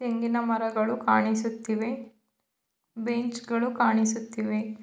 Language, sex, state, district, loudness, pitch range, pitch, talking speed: Kannada, female, Karnataka, Mysore, -27 LUFS, 220-235 Hz, 225 Hz, 75 wpm